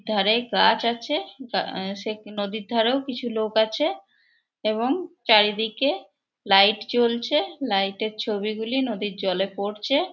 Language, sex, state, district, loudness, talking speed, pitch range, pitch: Bengali, female, West Bengal, Purulia, -23 LUFS, 125 wpm, 210-265 Hz, 225 Hz